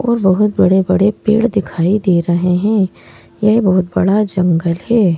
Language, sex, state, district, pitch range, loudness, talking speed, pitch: Hindi, male, Madhya Pradesh, Bhopal, 180-210 Hz, -14 LUFS, 150 wpm, 190 Hz